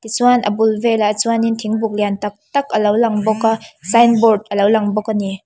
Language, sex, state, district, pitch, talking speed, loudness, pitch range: Mizo, female, Mizoram, Aizawl, 220 Hz, 200 wpm, -16 LUFS, 210-230 Hz